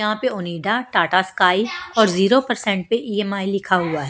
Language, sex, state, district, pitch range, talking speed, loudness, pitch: Hindi, female, Punjab, Pathankot, 185-225 Hz, 190 wpm, -19 LUFS, 200 Hz